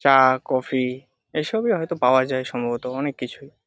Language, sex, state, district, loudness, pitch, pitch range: Bengali, male, West Bengal, Jalpaiguri, -22 LUFS, 130 Hz, 125-140 Hz